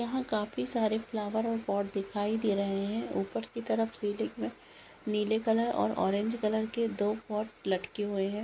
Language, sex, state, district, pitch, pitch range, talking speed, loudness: Hindi, female, Maharashtra, Sindhudurg, 210 Hz, 200-225 Hz, 175 wpm, -32 LUFS